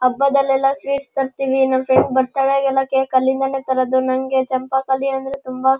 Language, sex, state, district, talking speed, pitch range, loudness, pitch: Kannada, male, Karnataka, Shimoga, 155 wpm, 260-270 Hz, -18 LUFS, 265 Hz